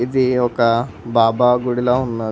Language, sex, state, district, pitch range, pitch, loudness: Telugu, male, Telangana, Hyderabad, 115-125 Hz, 120 Hz, -17 LUFS